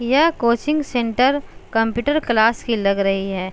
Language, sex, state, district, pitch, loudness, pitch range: Hindi, female, Uttar Pradesh, Jalaun, 235 Hz, -19 LUFS, 220-275 Hz